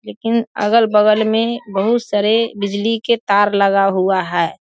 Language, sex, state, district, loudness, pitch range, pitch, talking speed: Hindi, female, Bihar, Saharsa, -16 LUFS, 200-225 Hz, 210 Hz, 145 wpm